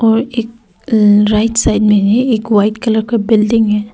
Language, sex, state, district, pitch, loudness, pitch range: Hindi, female, Arunachal Pradesh, Papum Pare, 220 Hz, -12 LUFS, 210-230 Hz